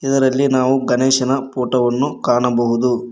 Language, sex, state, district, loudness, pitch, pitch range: Kannada, male, Karnataka, Koppal, -16 LUFS, 130 Hz, 125-135 Hz